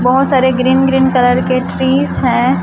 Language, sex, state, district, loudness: Hindi, female, Chhattisgarh, Raipur, -12 LUFS